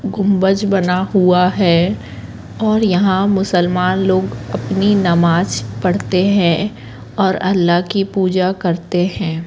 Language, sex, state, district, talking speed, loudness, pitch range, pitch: Hindi, female, Madhya Pradesh, Katni, 120 wpm, -15 LUFS, 175-195 Hz, 185 Hz